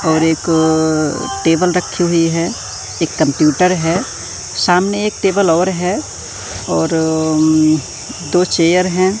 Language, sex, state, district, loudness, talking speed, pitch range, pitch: Hindi, male, Madhya Pradesh, Katni, -15 LUFS, 125 wpm, 145-180 Hz, 160 Hz